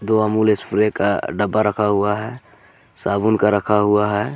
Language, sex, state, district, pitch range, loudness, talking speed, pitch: Hindi, male, Jharkhand, Garhwa, 105-110 Hz, -18 LUFS, 180 wpm, 105 Hz